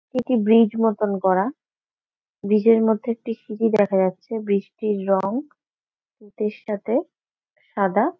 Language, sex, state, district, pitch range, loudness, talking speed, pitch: Bengali, female, West Bengal, Jalpaiguri, 200-230 Hz, -21 LUFS, 125 wpm, 215 Hz